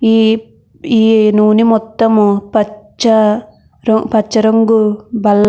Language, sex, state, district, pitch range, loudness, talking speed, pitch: Telugu, female, Andhra Pradesh, Krishna, 210-225 Hz, -12 LUFS, 85 wpm, 220 Hz